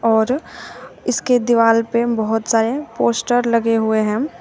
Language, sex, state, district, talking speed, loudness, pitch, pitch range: Hindi, female, Uttar Pradesh, Shamli, 135 wpm, -17 LUFS, 230 Hz, 225-245 Hz